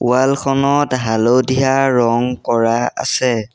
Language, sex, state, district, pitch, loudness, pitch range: Assamese, male, Assam, Sonitpur, 125 Hz, -15 LUFS, 120-135 Hz